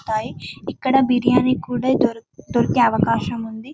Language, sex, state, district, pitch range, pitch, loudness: Telugu, female, Telangana, Karimnagar, 225-260 Hz, 245 Hz, -19 LUFS